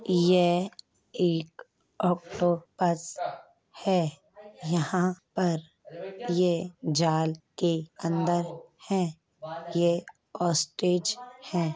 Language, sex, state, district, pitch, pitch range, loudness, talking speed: Hindi, male, Uttar Pradesh, Hamirpur, 175 Hz, 165-180 Hz, -28 LUFS, 70 wpm